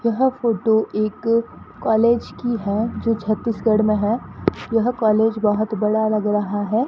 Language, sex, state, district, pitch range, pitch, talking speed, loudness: Hindi, female, Rajasthan, Bikaner, 215-230 Hz, 220 Hz, 150 wpm, -20 LUFS